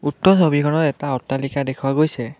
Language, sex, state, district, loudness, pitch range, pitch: Assamese, male, Assam, Kamrup Metropolitan, -19 LUFS, 135-155 Hz, 145 Hz